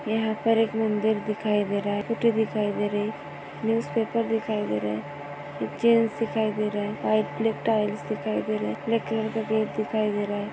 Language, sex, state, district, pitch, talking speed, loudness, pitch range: Hindi, female, Uttarakhand, Tehri Garhwal, 215 Hz, 175 wpm, -26 LUFS, 205-220 Hz